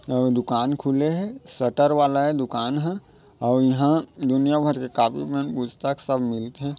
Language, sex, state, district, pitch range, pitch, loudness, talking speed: Chhattisgarhi, male, Chhattisgarh, Raigarh, 125-145 Hz, 140 Hz, -23 LUFS, 170 wpm